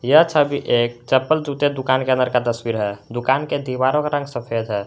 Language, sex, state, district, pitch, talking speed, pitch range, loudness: Hindi, male, Jharkhand, Garhwa, 130 Hz, 220 wpm, 120-145 Hz, -19 LUFS